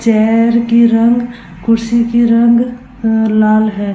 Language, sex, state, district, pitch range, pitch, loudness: Hindi, female, Bihar, Vaishali, 220-235 Hz, 230 Hz, -11 LUFS